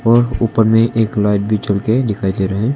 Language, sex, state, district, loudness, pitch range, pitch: Hindi, male, Arunachal Pradesh, Longding, -15 LUFS, 105-115 Hz, 110 Hz